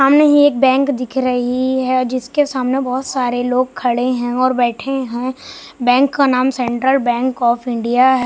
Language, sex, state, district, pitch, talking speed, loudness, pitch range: Hindi, male, Bihar, West Champaran, 255 Hz, 180 wpm, -16 LUFS, 245-270 Hz